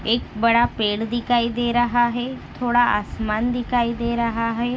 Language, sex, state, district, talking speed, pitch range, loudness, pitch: Hindi, female, Maharashtra, Nagpur, 165 wpm, 230-240 Hz, -21 LUFS, 235 Hz